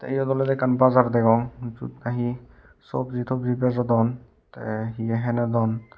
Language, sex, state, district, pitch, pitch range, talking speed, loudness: Chakma, male, Tripura, Unakoti, 120 Hz, 115-125 Hz, 130 wpm, -24 LUFS